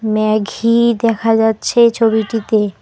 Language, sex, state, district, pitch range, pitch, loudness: Bengali, female, West Bengal, Alipurduar, 215-230 Hz, 225 Hz, -14 LUFS